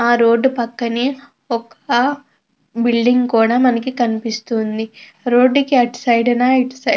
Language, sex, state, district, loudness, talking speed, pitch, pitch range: Telugu, female, Andhra Pradesh, Krishna, -16 LUFS, 120 wpm, 240 Hz, 230-255 Hz